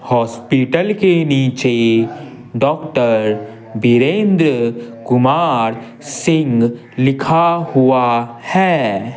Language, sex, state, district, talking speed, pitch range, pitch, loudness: Hindi, male, Bihar, Patna, 45 wpm, 120-155 Hz, 125 Hz, -15 LUFS